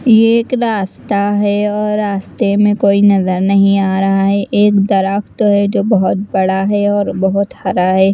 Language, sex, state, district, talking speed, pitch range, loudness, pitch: Hindi, female, Chandigarh, Chandigarh, 175 wpm, 195-210 Hz, -13 LUFS, 200 Hz